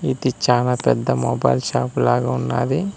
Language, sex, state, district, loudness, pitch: Telugu, male, Telangana, Mahabubabad, -19 LUFS, 100 Hz